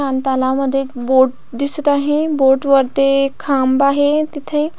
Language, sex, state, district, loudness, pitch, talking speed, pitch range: Marathi, female, Maharashtra, Pune, -15 LUFS, 275 Hz, 165 wpm, 265-290 Hz